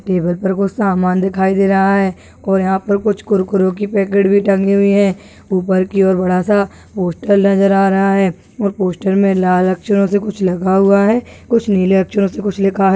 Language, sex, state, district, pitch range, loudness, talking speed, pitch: Hindi, female, Rajasthan, Churu, 190-200 Hz, -14 LUFS, 200 wpm, 195 Hz